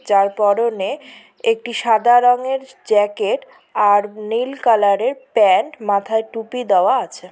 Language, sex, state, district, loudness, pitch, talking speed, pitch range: Bengali, female, West Bengal, Purulia, -17 LUFS, 230 Hz, 115 wpm, 210-265 Hz